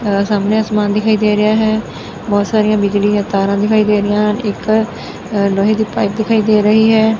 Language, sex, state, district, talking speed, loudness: Punjabi, female, Punjab, Fazilka, 185 wpm, -14 LUFS